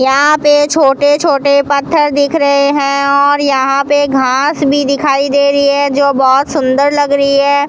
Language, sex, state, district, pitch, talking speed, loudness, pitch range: Hindi, female, Rajasthan, Bikaner, 280 Hz, 180 wpm, -10 LUFS, 280-290 Hz